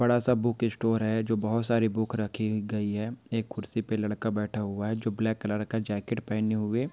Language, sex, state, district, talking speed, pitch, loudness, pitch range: Hindi, male, Chhattisgarh, Jashpur, 235 wpm, 110 Hz, -29 LUFS, 105-115 Hz